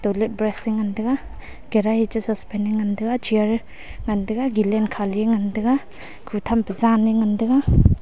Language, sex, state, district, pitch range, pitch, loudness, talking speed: Wancho, female, Arunachal Pradesh, Longding, 210-230 Hz, 220 Hz, -21 LUFS, 185 wpm